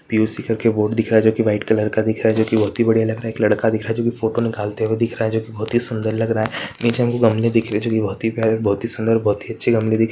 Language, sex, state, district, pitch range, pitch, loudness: Hindi, male, Jharkhand, Sahebganj, 110-115 Hz, 110 Hz, -19 LUFS